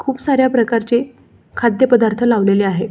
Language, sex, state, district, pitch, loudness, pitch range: Marathi, male, Maharashtra, Solapur, 235 Hz, -15 LUFS, 225-260 Hz